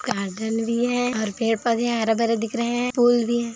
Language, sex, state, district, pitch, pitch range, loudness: Hindi, female, Chhattisgarh, Kabirdham, 235 Hz, 225-240 Hz, -22 LUFS